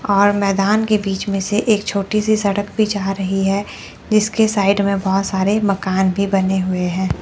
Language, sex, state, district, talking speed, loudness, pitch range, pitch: Hindi, female, Chandigarh, Chandigarh, 200 wpm, -17 LUFS, 195-210 Hz, 200 Hz